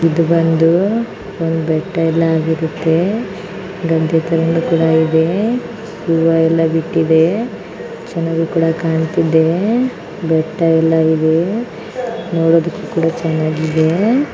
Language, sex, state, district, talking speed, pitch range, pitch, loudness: Kannada, female, Karnataka, Chamarajanagar, 90 wpm, 160-190 Hz, 165 Hz, -15 LUFS